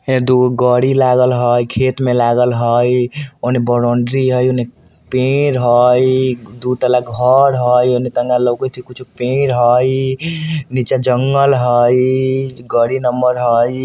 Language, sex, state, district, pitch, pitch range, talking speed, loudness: Bajjika, male, Bihar, Vaishali, 125 Hz, 120-130 Hz, 120 wpm, -14 LUFS